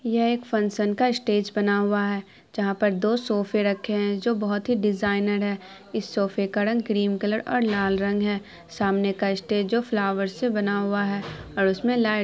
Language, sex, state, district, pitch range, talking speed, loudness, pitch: Hindi, female, Bihar, Araria, 200-215 Hz, 200 wpm, -24 LUFS, 205 Hz